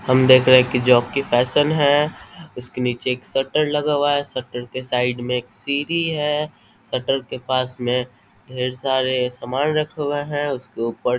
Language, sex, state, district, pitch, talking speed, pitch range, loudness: Hindi, male, Bihar, Vaishali, 130 Hz, 180 wpm, 125-145 Hz, -20 LUFS